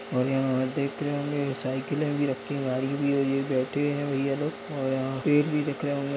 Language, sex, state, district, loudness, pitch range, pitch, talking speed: Hindi, male, Bihar, Darbhanga, -27 LUFS, 135-145 Hz, 140 Hz, 250 wpm